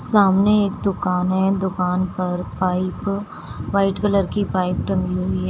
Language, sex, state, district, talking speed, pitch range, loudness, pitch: Hindi, female, Uttar Pradesh, Shamli, 150 wpm, 180-200 Hz, -20 LUFS, 190 Hz